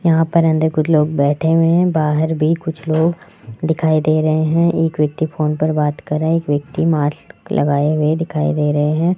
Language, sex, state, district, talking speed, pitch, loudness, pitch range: Hindi, male, Rajasthan, Jaipur, 210 wpm, 155 Hz, -16 LUFS, 150-165 Hz